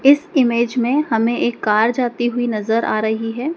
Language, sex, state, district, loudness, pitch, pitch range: Hindi, male, Madhya Pradesh, Dhar, -18 LUFS, 240 Hz, 225-255 Hz